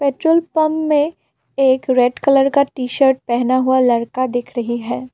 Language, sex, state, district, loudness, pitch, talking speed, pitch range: Hindi, female, Assam, Kamrup Metropolitan, -16 LUFS, 260 Hz, 175 wpm, 245-280 Hz